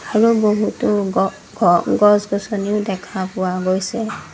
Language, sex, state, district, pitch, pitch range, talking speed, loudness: Assamese, female, Assam, Sonitpur, 205 Hz, 190-215 Hz, 110 wpm, -18 LUFS